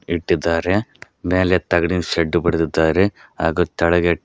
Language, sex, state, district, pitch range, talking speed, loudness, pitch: Kannada, male, Karnataka, Koppal, 85-90 Hz, 100 wpm, -19 LUFS, 85 Hz